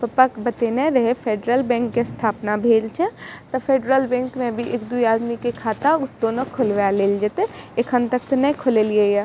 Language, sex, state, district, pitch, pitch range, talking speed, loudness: Maithili, female, Bihar, Madhepura, 240 Hz, 225-260 Hz, 200 wpm, -20 LUFS